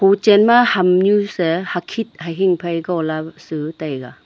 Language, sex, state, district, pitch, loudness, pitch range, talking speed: Wancho, female, Arunachal Pradesh, Longding, 175 Hz, -17 LUFS, 160-205 Hz, 170 wpm